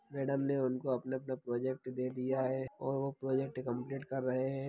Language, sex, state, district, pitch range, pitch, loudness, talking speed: Hindi, male, Bihar, Lakhisarai, 130-135 Hz, 130 Hz, -37 LUFS, 205 wpm